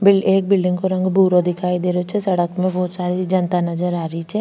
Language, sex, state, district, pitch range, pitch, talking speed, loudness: Rajasthani, female, Rajasthan, Nagaur, 180-190 Hz, 180 Hz, 260 wpm, -18 LUFS